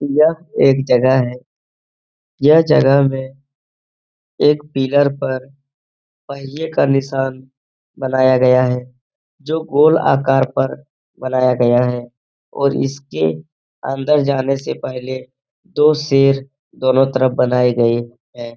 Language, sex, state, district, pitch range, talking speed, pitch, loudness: Hindi, male, Bihar, Jahanabad, 125-140 Hz, 115 wpm, 135 Hz, -16 LUFS